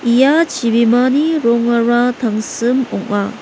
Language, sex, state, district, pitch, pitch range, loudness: Garo, female, Meghalaya, West Garo Hills, 240 Hz, 235-260 Hz, -14 LUFS